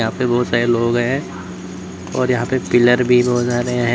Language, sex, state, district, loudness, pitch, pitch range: Hindi, male, Uttar Pradesh, Lalitpur, -17 LUFS, 120 Hz, 110-125 Hz